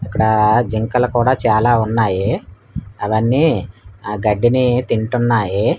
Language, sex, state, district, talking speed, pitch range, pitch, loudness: Telugu, male, Andhra Pradesh, Manyam, 95 wpm, 105-125 Hz, 115 Hz, -16 LUFS